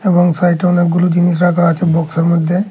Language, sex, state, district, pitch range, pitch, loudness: Bengali, male, Tripura, Unakoti, 170-180 Hz, 175 Hz, -13 LUFS